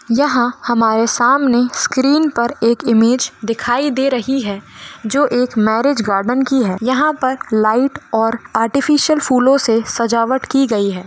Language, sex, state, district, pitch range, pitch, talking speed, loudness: Hindi, female, Rajasthan, Nagaur, 225-270 Hz, 245 Hz, 150 wpm, -15 LUFS